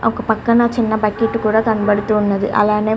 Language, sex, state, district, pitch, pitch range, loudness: Telugu, male, Andhra Pradesh, Guntur, 220 Hz, 210-225 Hz, -16 LUFS